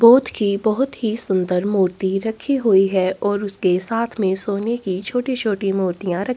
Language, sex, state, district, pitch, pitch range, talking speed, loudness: Hindi, female, Chhattisgarh, Korba, 205 Hz, 190-230 Hz, 170 wpm, -20 LUFS